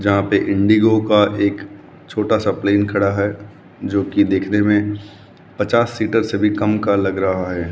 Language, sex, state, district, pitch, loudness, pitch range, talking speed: Hindi, male, Rajasthan, Bikaner, 100 Hz, -17 LUFS, 100-105 Hz, 180 wpm